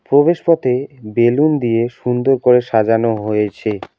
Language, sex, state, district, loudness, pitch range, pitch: Bengali, male, West Bengal, Alipurduar, -15 LUFS, 115-135 Hz, 125 Hz